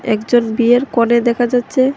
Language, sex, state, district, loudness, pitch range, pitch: Bengali, female, Tripura, Dhalai, -14 LUFS, 235-245 Hz, 240 Hz